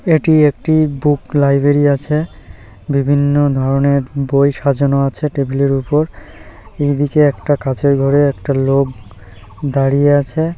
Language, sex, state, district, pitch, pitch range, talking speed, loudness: Bengali, male, West Bengal, North 24 Parganas, 140 Hz, 135-145 Hz, 115 wpm, -14 LUFS